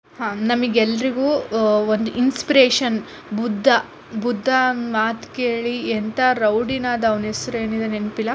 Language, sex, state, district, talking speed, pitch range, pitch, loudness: Kannada, female, Karnataka, Shimoga, 115 wpm, 220-250 Hz, 235 Hz, -20 LUFS